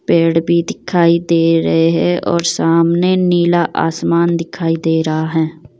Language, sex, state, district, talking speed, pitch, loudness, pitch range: Hindi, female, Himachal Pradesh, Shimla, 145 wpm, 165 Hz, -14 LUFS, 160-170 Hz